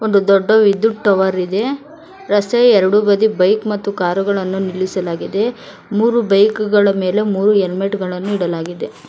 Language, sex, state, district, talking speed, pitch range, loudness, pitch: Kannada, female, Karnataka, Bangalore, 130 wpm, 190-215 Hz, -15 LUFS, 200 Hz